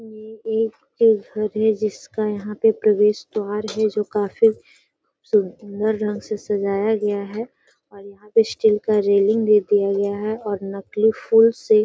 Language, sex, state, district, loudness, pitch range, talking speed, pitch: Hindi, female, Bihar, Gaya, -20 LUFS, 205-220 Hz, 155 wpm, 215 Hz